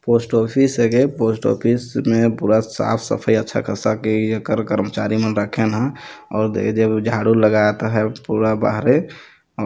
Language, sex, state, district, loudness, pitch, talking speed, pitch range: Chhattisgarhi, male, Chhattisgarh, Jashpur, -18 LUFS, 110 Hz, 180 wpm, 110-115 Hz